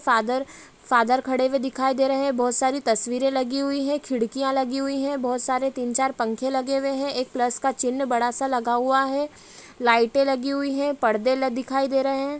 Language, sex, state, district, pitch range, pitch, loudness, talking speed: Hindi, female, Chhattisgarh, Rajnandgaon, 250-275 Hz, 265 Hz, -23 LUFS, 220 wpm